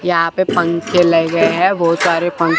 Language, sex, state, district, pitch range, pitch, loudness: Hindi, male, Chandigarh, Chandigarh, 170-175 Hz, 170 Hz, -14 LUFS